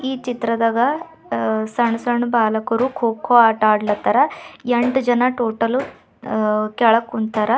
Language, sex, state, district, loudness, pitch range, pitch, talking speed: Kannada, female, Karnataka, Bidar, -18 LUFS, 220-245 Hz, 235 Hz, 120 wpm